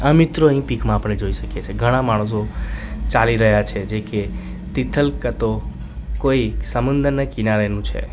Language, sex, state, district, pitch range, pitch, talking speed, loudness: Gujarati, male, Gujarat, Valsad, 105-130 Hz, 110 Hz, 160 wpm, -20 LUFS